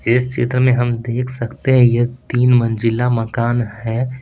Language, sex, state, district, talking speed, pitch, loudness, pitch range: Hindi, male, Bihar, Patna, 200 wpm, 120 Hz, -17 LUFS, 120-125 Hz